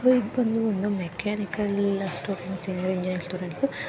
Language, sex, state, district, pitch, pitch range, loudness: Kannada, female, Karnataka, Chamarajanagar, 195 Hz, 185-210 Hz, -27 LUFS